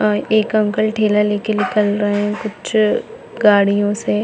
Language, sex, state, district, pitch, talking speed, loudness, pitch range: Hindi, female, Chhattisgarh, Bilaspur, 210 Hz, 155 wpm, -16 LUFS, 205-215 Hz